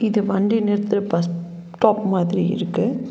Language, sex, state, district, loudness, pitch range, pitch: Tamil, female, Tamil Nadu, Nilgiris, -20 LUFS, 175-215 Hz, 200 Hz